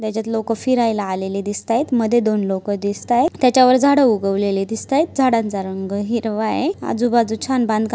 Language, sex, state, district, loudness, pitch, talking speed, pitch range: Marathi, female, Maharashtra, Dhule, -18 LUFS, 225 Hz, 160 wpm, 205-250 Hz